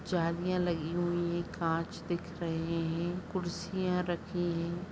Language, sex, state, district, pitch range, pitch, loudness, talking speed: Hindi, female, Bihar, Begusarai, 170-180 Hz, 175 Hz, -34 LUFS, 135 wpm